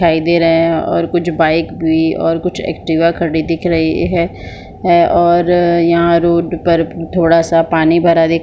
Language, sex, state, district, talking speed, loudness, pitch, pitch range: Hindi, female, Chhattisgarh, Bilaspur, 180 wpm, -13 LUFS, 170 Hz, 165-170 Hz